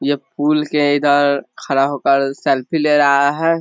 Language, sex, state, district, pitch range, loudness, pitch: Hindi, male, Bihar, East Champaran, 140-150 Hz, -16 LUFS, 145 Hz